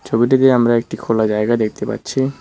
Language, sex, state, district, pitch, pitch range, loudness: Bengali, male, West Bengal, Cooch Behar, 120 Hz, 110-130 Hz, -16 LUFS